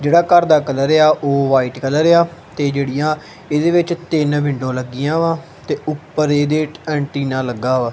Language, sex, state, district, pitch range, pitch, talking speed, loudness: Punjabi, male, Punjab, Kapurthala, 135-160 Hz, 150 Hz, 175 wpm, -17 LUFS